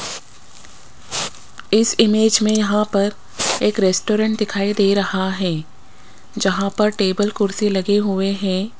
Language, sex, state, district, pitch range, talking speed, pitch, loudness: Hindi, female, Rajasthan, Jaipur, 195-215 Hz, 125 wpm, 200 Hz, -18 LUFS